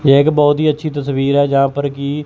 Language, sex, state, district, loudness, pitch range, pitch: Hindi, male, Chandigarh, Chandigarh, -15 LUFS, 140-150 Hz, 140 Hz